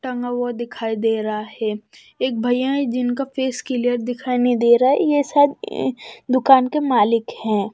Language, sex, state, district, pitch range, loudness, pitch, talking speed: Hindi, female, Bihar, West Champaran, 230-265 Hz, -19 LUFS, 245 Hz, 180 wpm